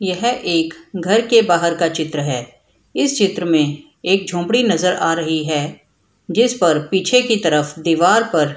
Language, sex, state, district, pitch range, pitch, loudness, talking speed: Hindi, female, Bihar, Madhepura, 155-200 Hz, 170 Hz, -17 LUFS, 170 wpm